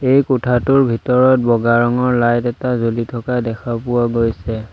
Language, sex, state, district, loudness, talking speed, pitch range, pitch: Assamese, male, Assam, Sonitpur, -16 LUFS, 150 wpm, 115-125 Hz, 120 Hz